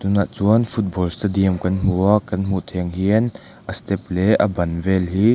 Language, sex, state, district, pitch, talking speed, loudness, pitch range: Mizo, male, Mizoram, Aizawl, 95 Hz, 215 wpm, -20 LUFS, 90-105 Hz